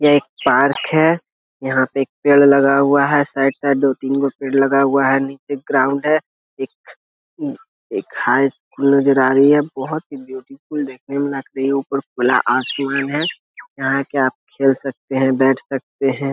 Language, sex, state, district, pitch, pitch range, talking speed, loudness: Hindi, male, Uttar Pradesh, Etah, 140 Hz, 135-140 Hz, 185 wpm, -17 LUFS